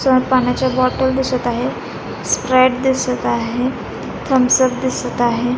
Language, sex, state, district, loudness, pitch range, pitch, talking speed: Marathi, female, Maharashtra, Dhule, -17 LUFS, 245-260 Hz, 255 Hz, 130 wpm